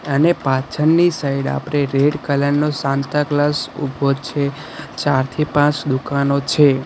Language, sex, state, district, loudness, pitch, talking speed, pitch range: Gujarati, male, Gujarat, Gandhinagar, -18 LUFS, 140 Hz, 130 wpm, 140-150 Hz